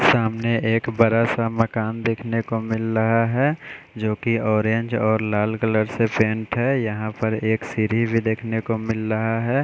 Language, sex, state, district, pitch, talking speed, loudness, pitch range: Hindi, male, Bihar, West Champaran, 115 Hz, 175 wpm, -22 LUFS, 110-115 Hz